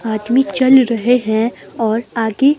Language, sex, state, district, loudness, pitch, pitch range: Hindi, female, Himachal Pradesh, Shimla, -15 LUFS, 235 Hz, 220-260 Hz